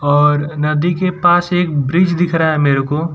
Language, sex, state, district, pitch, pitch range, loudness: Hindi, male, Gujarat, Valsad, 160 Hz, 145-175 Hz, -14 LUFS